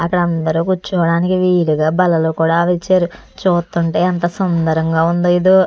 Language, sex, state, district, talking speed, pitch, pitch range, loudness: Telugu, female, Andhra Pradesh, Chittoor, 115 wpm, 175 Hz, 165-180 Hz, -15 LUFS